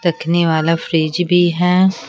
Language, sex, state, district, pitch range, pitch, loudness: Hindi, female, Bihar, Patna, 165-180 Hz, 170 Hz, -15 LUFS